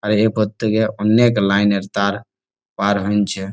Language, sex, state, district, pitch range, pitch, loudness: Bengali, male, West Bengal, Jalpaiguri, 100-110 Hz, 105 Hz, -17 LUFS